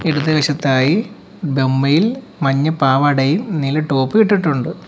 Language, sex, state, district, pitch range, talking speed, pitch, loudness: Malayalam, male, Kerala, Kollam, 135-175 Hz, 100 wpm, 150 Hz, -16 LUFS